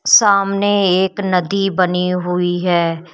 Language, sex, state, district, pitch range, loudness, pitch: Hindi, female, Uttar Pradesh, Shamli, 180-195 Hz, -15 LUFS, 185 Hz